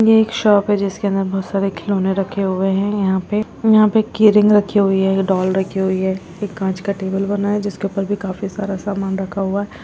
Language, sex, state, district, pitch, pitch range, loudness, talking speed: Hindi, female, Chhattisgarh, Rajnandgaon, 195 Hz, 190-205 Hz, -17 LUFS, 230 wpm